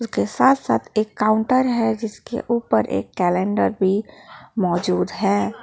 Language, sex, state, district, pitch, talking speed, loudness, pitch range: Hindi, female, Jharkhand, Palamu, 215 Hz, 140 wpm, -20 LUFS, 195-235 Hz